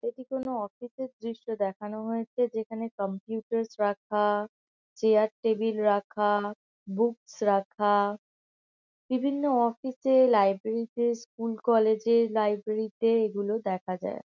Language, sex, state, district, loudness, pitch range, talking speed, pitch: Bengali, female, West Bengal, Kolkata, -28 LUFS, 205-230 Hz, 120 wpm, 220 Hz